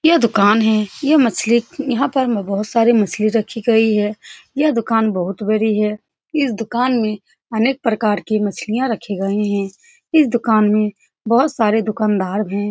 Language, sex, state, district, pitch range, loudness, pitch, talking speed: Hindi, female, Bihar, Saran, 210-240 Hz, -17 LUFS, 220 Hz, 160 wpm